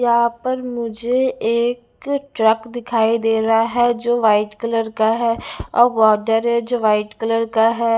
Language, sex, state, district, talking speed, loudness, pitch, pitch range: Hindi, female, Bihar, West Champaran, 165 wpm, -18 LUFS, 230 Hz, 225-240 Hz